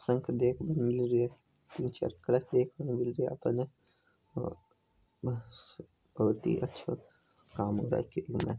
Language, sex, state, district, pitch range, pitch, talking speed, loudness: Hindi, female, Rajasthan, Nagaur, 120-125 Hz, 125 Hz, 125 wpm, -34 LUFS